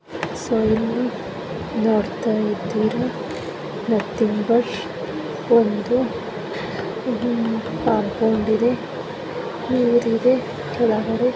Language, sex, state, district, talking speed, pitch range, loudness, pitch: Kannada, female, Karnataka, Mysore, 55 wpm, 220-240 Hz, -22 LUFS, 230 Hz